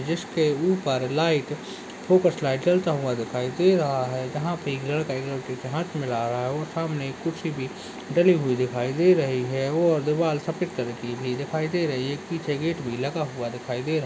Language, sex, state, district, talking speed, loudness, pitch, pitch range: Hindi, male, Uttarakhand, Tehri Garhwal, 215 wpm, -25 LUFS, 145 Hz, 130-165 Hz